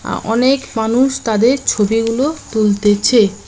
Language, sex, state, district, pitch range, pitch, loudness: Bengali, female, West Bengal, Cooch Behar, 215-260 Hz, 225 Hz, -15 LUFS